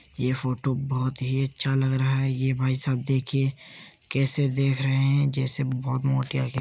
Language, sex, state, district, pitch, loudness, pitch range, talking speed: Hindi, male, Uttar Pradesh, Jyotiba Phule Nagar, 135 Hz, -26 LUFS, 130-135 Hz, 190 wpm